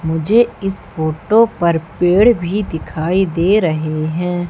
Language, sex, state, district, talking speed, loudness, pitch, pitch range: Hindi, female, Madhya Pradesh, Umaria, 135 wpm, -16 LUFS, 175 Hz, 160-205 Hz